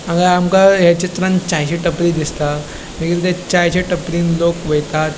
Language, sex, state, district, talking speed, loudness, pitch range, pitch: Konkani, male, Goa, North and South Goa, 150 wpm, -15 LUFS, 160-180 Hz, 170 Hz